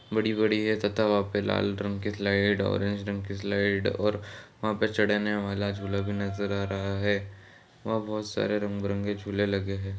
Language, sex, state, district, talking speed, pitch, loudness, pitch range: Hindi, male, Bihar, Purnia, 200 wpm, 100 Hz, -28 LUFS, 100-105 Hz